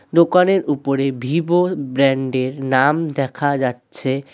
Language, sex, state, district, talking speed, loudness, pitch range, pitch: Bengali, male, West Bengal, Alipurduar, 110 wpm, -18 LUFS, 130-165 Hz, 140 Hz